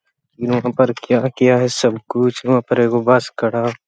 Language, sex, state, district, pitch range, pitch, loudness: Hindi, male, Jharkhand, Sahebganj, 120-125 Hz, 125 Hz, -17 LUFS